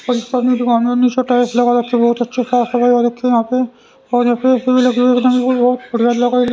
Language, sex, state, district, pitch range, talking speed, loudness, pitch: Hindi, male, Haryana, Rohtak, 240-250 Hz, 165 wpm, -14 LUFS, 245 Hz